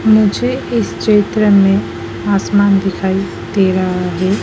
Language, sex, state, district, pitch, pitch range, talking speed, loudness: Hindi, female, Madhya Pradesh, Dhar, 195 Hz, 185-210 Hz, 120 wpm, -14 LUFS